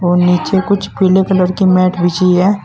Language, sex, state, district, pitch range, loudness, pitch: Hindi, male, Uttar Pradesh, Saharanpur, 180-190 Hz, -12 LUFS, 185 Hz